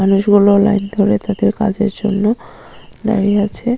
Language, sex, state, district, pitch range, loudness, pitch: Bengali, female, Tripura, Unakoti, 200-215 Hz, -15 LUFS, 205 Hz